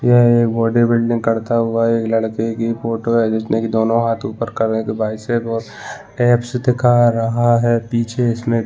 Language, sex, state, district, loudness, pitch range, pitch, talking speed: Hindi, male, Chhattisgarh, Balrampur, -17 LUFS, 115-120 Hz, 115 Hz, 185 wpm